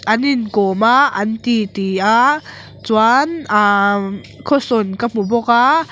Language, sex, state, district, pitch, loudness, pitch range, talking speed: Mizo, female, Mizoram, Aizawl, 225 Hz, -15 LUFS, 205-250 Hz, 140 wpm